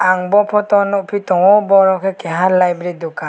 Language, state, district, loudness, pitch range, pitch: Kokborok, Tripura, West Tripura, -14 LUFS, 180-200 Hz, 190 Hz